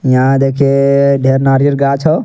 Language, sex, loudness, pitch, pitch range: Angika, male, -11 LUFS, 140 Hz, 135-140 Hz